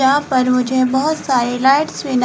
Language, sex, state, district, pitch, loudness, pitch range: Hindi, female, Himachal Pradesh, Shimla, 260 Hz, -16 LUFS, 255-280 Hz